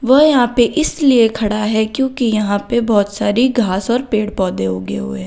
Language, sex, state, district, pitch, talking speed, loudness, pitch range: Hindi, female, Uttar Pradesh, Lalitpur, 220 Hz, 205 wpm, -15 LUFS, 205-245 Hz